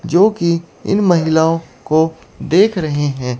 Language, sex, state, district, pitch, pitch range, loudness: Hindi, female, Chandigarh, Chandigarh, 165 Hz, 155-175 Hz, -15 LUFS